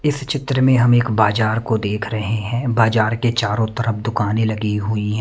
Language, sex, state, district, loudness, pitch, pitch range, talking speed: Hindi, male, Himachal Pradesh, Shimla, -18 LUFS, 110 Hz, 110-120 Hz, 205 wpm